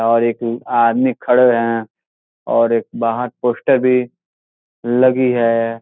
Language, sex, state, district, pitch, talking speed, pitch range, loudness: Hindi, male, Bihar, Gopalganj, 120 Hz, 125 wpm, 115-125 Hz, -16 LUFS